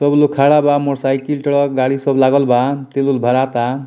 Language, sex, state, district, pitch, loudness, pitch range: Bhojpuri, male, Bihar, Muzaffarpur, 140 Hz, -15 LUFS, 130-140 Hz